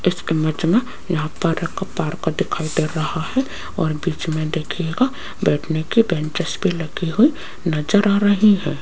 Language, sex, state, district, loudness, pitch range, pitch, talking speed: Hindi, female, Rajasthan, Jaipur, -20 LUFS, 160-195 Hz, 165 Hz, 170 wpm